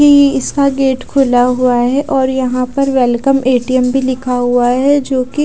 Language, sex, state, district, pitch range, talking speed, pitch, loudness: Hindi, female, Odisha, Khordha, 250-275 Hz, 175 wpm, 260 Hz, -12 LUFS